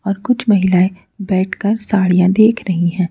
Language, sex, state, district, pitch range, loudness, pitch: Hindi, female, Madhya Pradesh, Bhopal, 185-215 Hz, -15 LUFS, 195 Hz